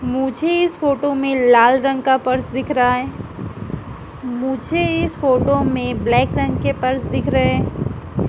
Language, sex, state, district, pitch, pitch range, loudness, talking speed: Hindi, female, Madhya Pradesh, Dhar, 265 Hz, 255-275 Hz, -18 LUFS, 150 wpm